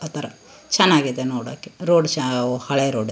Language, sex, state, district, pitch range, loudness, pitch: Kannada, female, Karnataka, Shimoga, 125-160 Hz, -20 LUFS, 135 Hz